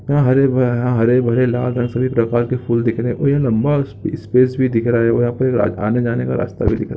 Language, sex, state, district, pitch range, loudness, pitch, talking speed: Hindi, male, Chhattisgarh, Bilaspur, 115-130 Hz, -17 LUFS, 120 Hz, 285 wpm